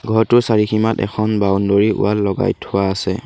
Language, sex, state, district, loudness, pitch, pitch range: Assamese, male, Assam, Sonitpur, -16 LUFS, 105 Hz, 100-110 Hz